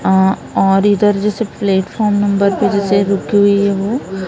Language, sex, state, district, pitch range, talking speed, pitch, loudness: Hindi, female, Maharashtra, Gondia, 195-205 Hz, 170 wpm, 200 Hz, -14 LUFS